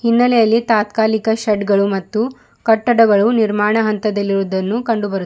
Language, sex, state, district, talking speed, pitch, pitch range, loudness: Kannada, female, Karnataka, Bidar, 125 wpm, 220 Hz, 205-230 Hz, -16 LUFS